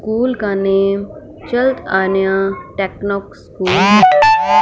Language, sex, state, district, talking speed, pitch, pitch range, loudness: Hindi, female, Punjab, Fazilka, 105 wpm, 195 Hz, 190-205 Hz, -14 LUFS